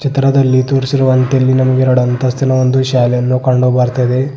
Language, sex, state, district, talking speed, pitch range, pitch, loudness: Kannada, male, Karnataka, Bidar, 125 wpm, 125-135 Hz, 130 Hz, -12 LUFS